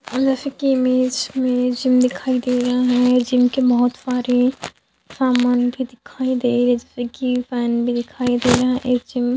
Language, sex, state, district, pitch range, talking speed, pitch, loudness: Hindi, female, Chhattisgarh, Sukma, 245-255 Hz, 185 wpm, 250 Hz, -19 LUFS